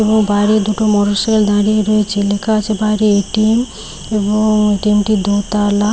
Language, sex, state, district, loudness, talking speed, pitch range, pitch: Bengali, female, West Bengal, Paschim Medinipur, -14 LUFS, 140 wpm, 205-215 Hz, 210 Hz